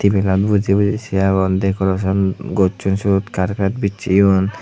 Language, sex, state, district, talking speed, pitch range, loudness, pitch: Chakma, male, Tripura, Unakoti, 130 wpm, 95-100 Hz, -17 LUFS, 95 Hz